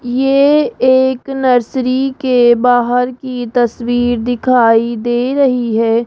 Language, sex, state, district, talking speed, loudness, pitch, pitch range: Hindi, female, Rajasthan, Jaipur, 110 wpm, -13 LUFS, 245 Hz, 240-260 Hz